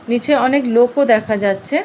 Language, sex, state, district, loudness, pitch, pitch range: Bengali, female, West Bengal, Purulia, -15 LUFS, 240 Hz, 220-280 Hz